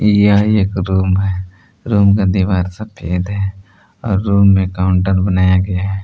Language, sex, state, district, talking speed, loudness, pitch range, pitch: Hindi, male, Jharkhand, Palamu, 150 wpm, -15 LUFS, 95-100 Hz, 95 Hz